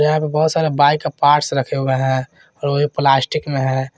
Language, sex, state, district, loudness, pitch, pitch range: Hindi, male, Jharkhand, Garhwa, -17 LUFS, 145 Hz, 135-150 Hz